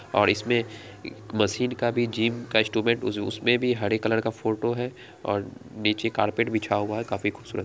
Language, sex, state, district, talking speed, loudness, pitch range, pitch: Angika, female, Bihar, Araria, 205 wpm, -26 LUFS, 105-120 Hz, 110 Hz